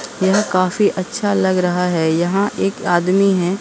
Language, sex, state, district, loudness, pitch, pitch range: Hindi, female, Bihar, Katihar, -17 LUFS, 185 Hz, 180-200 Hz